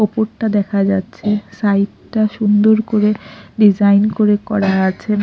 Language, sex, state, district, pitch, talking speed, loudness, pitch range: Bengali, female, Odisha, Khordha, 210 Hz, 115 wpm, -15 LUFS, 200-215 Hz